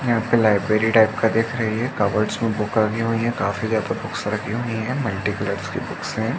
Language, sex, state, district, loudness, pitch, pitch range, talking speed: Hindi, male, Uttar Pradesh, Jalaun, -21 LUFS, 110 Hz, 105-115 Hz, 225 wpm